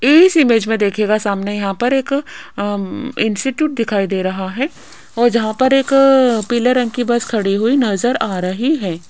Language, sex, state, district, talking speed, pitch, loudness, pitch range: Hindi, female, Rajasthan, Jaipur, 185 wpm, 230 Hz, -16 LUFS, 205-265 Hz